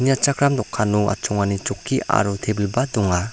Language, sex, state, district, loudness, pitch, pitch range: Garo, male, Meghalaya, South Garo Hills, -21 LUFS, 105 Hz, 100-130 Hz